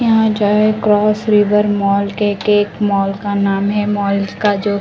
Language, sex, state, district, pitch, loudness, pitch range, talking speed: Hindi, female, Delhi, New Delhi, 205 Hz, -15 LUFS, 200-210 Hz, 200 wpm